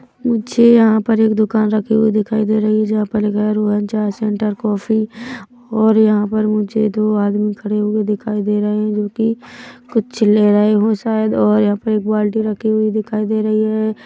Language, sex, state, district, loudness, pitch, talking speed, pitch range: Hindi, male, Chhattisgarh, Rajnandgaon, -16 LUFS, 215 Hz, 200 wpm, 210-220 Hz